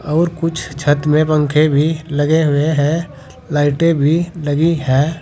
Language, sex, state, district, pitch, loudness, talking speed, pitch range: Hindi, male, Uttar Pradesh, Saharanpur, 155 Hz, -15 LUFS, 150 wpm, 145-160 Hz